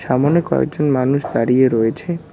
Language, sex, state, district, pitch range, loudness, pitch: Bengali, male, West Bengal, Cooch Behar, 130-155 Hz, -17 LUFS, 140 Hz